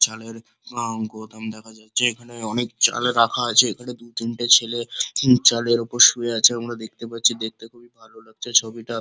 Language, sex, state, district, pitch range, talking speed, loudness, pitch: Bengali, male, West Bengal, Kolkata, 110-120 Hz, 165 wpm, -19 LUFS, 115 Hz